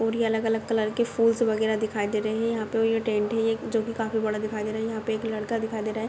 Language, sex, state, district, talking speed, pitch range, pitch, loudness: Hindi, female, Bihar, Madhepura, 305 wpm, 215-225 Hz, 220 Hz, -26 LUFS